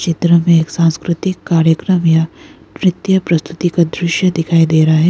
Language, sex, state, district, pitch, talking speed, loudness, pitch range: Hindi, female, Arunachal Pradesh, Lower Dibang Valley, 170 Hz, 165 wpm, -14 LUFS, 165-175 Hz